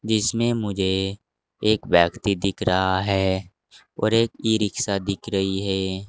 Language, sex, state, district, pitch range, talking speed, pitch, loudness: Hindi, male, Uttar Pradesh, Saharanpur, 95-110 Hz, 130 wpm, 100 Hz, -22 LUFS